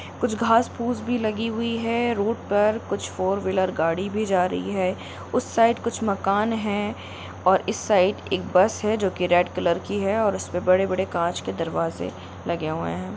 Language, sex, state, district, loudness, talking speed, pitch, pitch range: Hindi, female, Bihar, Gopalganj, -23 LUFS, 195 wpm, 200 Hz, 180-225 Hz